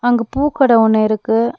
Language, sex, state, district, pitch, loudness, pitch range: Tamil, female, Tamil Nadu, Nilgiris, 230 Hz, -14 LUFS, 220-245 Hz